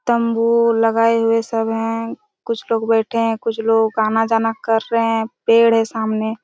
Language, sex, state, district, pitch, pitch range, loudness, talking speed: Hindi, female, Chhattisgarh, Raigarh, 225 Hz, 225-230 Hz, -17 LUFS, 170 wpm